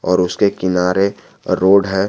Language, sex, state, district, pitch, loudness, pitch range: Hindi, male, Jharkhand, Garhwa, 95 Hz, -16 LUFS, 90-100 Hz